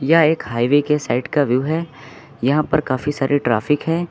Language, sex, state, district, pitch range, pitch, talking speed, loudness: Hindi, male, Uttar Pradesh, Lucknow, 130-155 Hz, 145 Hz, 205 wpm, -18 LUFS